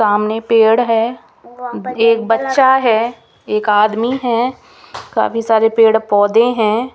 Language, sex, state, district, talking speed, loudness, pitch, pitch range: Hindi, female, Chandigarh, Chandigarh, 120 wpm, -14 LUFS, 230 Hz, 220-240 Hz